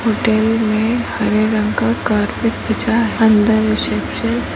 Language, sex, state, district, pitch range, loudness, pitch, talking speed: Hindi, female, Chhattisgarh, Kabirdham, 215-225 Hz, -16 LUFS, 220 Hz, 145 wpm